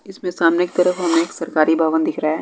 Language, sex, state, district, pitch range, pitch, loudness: Hindi, male, Bihar, West Champaran, 160-180 Hz, 165 Hz, -18 LUFS